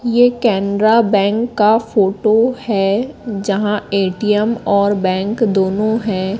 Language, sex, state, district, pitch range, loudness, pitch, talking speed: Hindi, female, Madhya Pradesh, Katni, 200-225 Hz, -15 LUFS, 210 Hz, 110 wpm